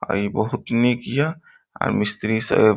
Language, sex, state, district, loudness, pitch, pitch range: Maithili, male, Bihar, Saharsa, -22 LUFS, 110 Hz, 105-120 Hz